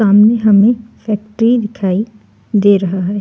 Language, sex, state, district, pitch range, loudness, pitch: Hindi, female, Uttar Pradesh, Jalaun, 200-220 Hz, -13 LUFS, 210 Hz